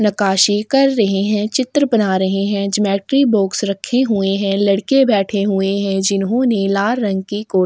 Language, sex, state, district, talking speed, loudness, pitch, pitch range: Hindi, female, Chhattisgarh, Sukma, 180 wpm, -16 LUFS, 205 Hz, 195-225 Hz